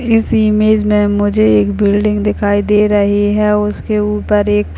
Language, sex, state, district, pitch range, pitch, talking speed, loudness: Hindi, female, Uttar Pradesh, Jalaun, 205-210 Hz, 210 Hz, 175 wpm, -13 LUFS